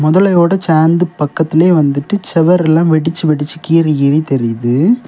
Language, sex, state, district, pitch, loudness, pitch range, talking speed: Tamil, male, Tamil Nadu, Kanyakumari, 160 Hz, -12 LUFS, 150-175 Hz, 120 wpm